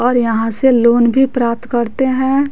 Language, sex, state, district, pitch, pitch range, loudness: Hindi, female, Bihar, West Champaran, 245 Hz, 235-265 Hz, -14 LUFS